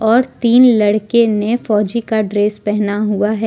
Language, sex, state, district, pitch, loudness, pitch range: Hindi, male, Jharkhand, Deoghar, 215 Hz, -14 LUFS, 210-235 Hz